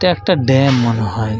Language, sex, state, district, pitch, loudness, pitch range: Bengali, male, Jharkhand, Jamtara, 130 Hz, -15 LUFS, 110-140 Hz